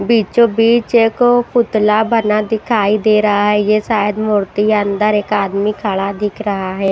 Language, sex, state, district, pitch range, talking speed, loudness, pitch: Hindi, female, Himachal Pradesh, Shimla, 205-225 Hz, 165 wpm, -14 LUFS, 210 Hz